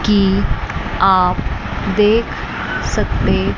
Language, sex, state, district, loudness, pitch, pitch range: Hindi, female, Chandigarh, Chandigarh, -17 LUFS, 195 Hz, 190-210 Hz